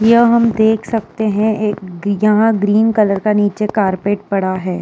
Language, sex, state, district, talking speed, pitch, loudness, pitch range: Hindi, female, Uttar Pradesh, Jyotiba Phule Nagar, 175 wpm, 210 Hz, -15 LUFS, 200-220 Hz